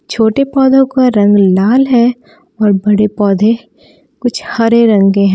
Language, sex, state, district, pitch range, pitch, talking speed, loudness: Hindi, female, Jharkhand, Palamu, 205-260 Hz, 230 Hz, 155 wpm, -11 LUFS